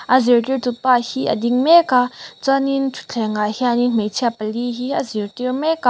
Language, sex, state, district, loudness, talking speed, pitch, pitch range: Mizo, female, Mizoram, Aizawl, -18 LUFS, 175 wpm, 245 Hz, 235-265 Hz